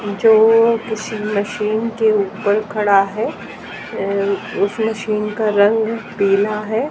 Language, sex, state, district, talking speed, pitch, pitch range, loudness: Hindi, female, Haryana, Jhajjar, 120 wpm, 215 Hz, 205-220 Hz, -17 LUFS